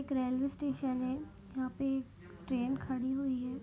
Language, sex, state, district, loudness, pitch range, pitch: Hindi, female, Uttar Pradesh, Deoria, -36 LUFS, 255-270 Hz, 265 Hz